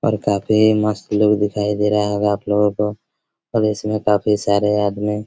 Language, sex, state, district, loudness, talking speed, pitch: Hindi, male, Chhattisgarh, Raigarh, -18 LUFS, 170 wpm, 105 Hz